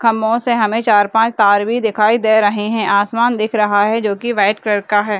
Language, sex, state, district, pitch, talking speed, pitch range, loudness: Hindi, female, Bihar, Madhepura, 215 Hz, 240 wpm, 205-225 Hz, -14 LUFS